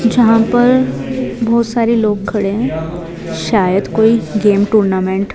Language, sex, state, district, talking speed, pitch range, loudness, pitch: Hindi, female, Himachal Pradesh, Shimla, 135 wpm, 195-230 Hz, -14 LUFS, 215 Hz